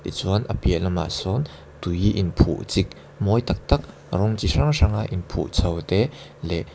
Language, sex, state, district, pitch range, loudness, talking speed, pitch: Mizo, male, Mizoram, Aizawl, 85-105 Hz, -23 LUFS, 195 wpm, 95 Hz